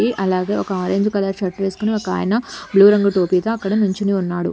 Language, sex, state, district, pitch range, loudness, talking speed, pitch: Telugu, female, Telangana, Hyderabad, 190-210 Hz, -18 LUFS, 170 wpm, 195 Hz